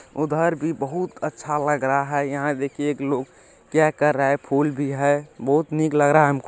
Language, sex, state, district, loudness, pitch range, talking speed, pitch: Maithili, male, Bihar, Supaul, -22 LUFS, 140-155 Hz, 220 wpm, 145 Hz